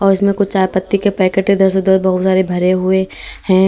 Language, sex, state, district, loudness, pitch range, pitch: Hindi, female, Uttar Pradesh, Lalitpur, -14 LUFS, 185-195 Hz, 190 Hz